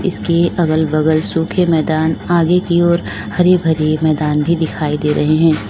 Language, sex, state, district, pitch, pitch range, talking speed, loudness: Hindi, female, Uttar Pradesh, Lalitpur, 160 Hz, 155-170 Hz, 170 wpm, -14 LUFS